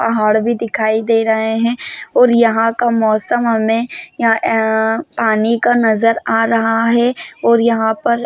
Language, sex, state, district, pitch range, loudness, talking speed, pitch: Hindi, female, Maharashtra, Chandrapur, 220-235 Hz, -14 LUFS, 160 wpm, 225 Hz